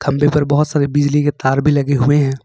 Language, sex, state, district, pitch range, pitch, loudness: Hindi, male, Jharkhand, Ranchi, 140-145 Hz, 145 Hz, -15 LUFS